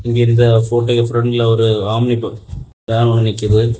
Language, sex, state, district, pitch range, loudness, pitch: Tamil, male, Tamil Nadu, Kanyakumari, 115-120 Hz, -14 LUFS, 115 Hz